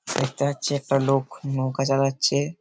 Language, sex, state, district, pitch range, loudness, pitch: Bengali, male, West Bengal, Paschim Medinipur, 135-140 Hz, -24 LUFS, 135 Hz